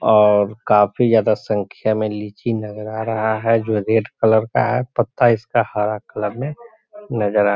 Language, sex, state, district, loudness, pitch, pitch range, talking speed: Hindi, male, Bihar, Sitamarhi, -19 LUFS, 110 Hz, 105-115 Hz, 180 wpm